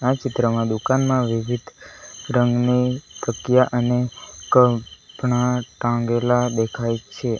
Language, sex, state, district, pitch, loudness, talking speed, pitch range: Gujarati, male, Gujarat, Valsad, 120 Hz, -21 LUFS, 80 wpm, 115-125 Hz